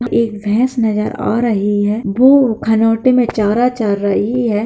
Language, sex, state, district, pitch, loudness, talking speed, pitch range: Hindi, female, Bihar, Jahanabad, 225 Hz, -14 LUFS, 165 wpm, 210-245 Hz